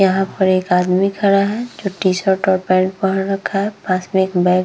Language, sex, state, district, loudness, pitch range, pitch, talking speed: Hindi, female, Bihar, Vaishali, -17 LUFS, 185-195 Hz, 190 Hz, 230 wpm